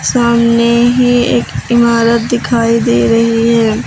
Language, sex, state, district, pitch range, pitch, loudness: Hindi, female, Uttar Pradesh, Lucknow, 230-235 Hz, 235 Hz, -11 LUFS